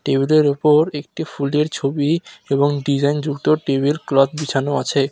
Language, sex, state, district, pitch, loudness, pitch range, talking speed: Bengali, male, West Bengal, Alipurduar, 145 Hz, -18 LUFS, 140-150 Hz, 150 wpm